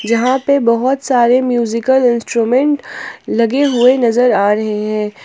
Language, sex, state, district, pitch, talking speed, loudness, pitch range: Hindi, female, Jharkhand, Palamu, 240 Hz, 135 wpm, -13 LUFS, 230-260 Hz